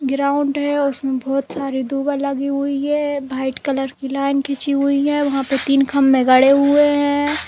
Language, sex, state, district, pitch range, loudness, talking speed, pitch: Hindi, female, Uttar Pradesh, Jalaun, 270-285 Hz, -18 LUFS, 185 wpm, 275 Hz